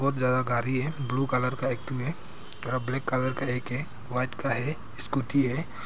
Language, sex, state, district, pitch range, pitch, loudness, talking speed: Hindi, male, Arunachal Pradesh, Papum Pare, 125-135 Hz, 130 Hz, -28 LUFS, 225 wpm